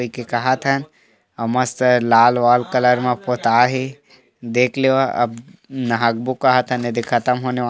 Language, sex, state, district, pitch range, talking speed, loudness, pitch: Chhattisgarhi, male, Chhattisgarh, Korba, 120-130 Hz, 165 wpm, -18 LUFS, 125 Hz